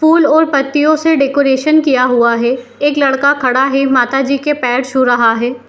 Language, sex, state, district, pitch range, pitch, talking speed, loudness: Hindi, female, Bihar, Madhepura, 250-290 Hz, 270 Hz, 200 wpm, -12 LUFS